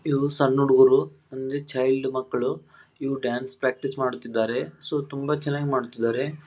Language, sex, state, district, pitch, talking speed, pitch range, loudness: Kannada, male, Karnataka, Dharwad, 135 Hz, 120 wpm, 130-140 Hz, -24 LUFS